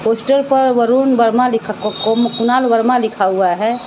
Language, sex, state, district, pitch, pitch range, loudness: Hindi, female, Bihar, West Champaran, 235 Hz, 220-250 Hz, -14 LUFS